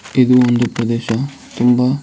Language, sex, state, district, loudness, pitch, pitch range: Kannada, male, Karnataka, Dharwad, -15 LUFS, 125 Hz, 115-125 Hz